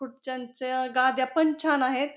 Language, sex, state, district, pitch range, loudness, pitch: Marathi, female, Maharashtra, Pune, 255-290 Hz, -26 LUFS, 260 Hz